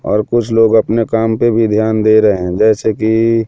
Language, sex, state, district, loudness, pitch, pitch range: Hindi, male, Madhya Pradesh, Katni, -12 LUFS, 110 Hz, 110-115 Hz